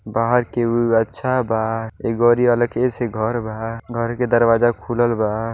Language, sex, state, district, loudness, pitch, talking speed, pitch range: Bhojpuri, male, Uttar Pradesh, Deoria, -19 LUFS, 115 Hz, 150 wpm, 115-120 Hz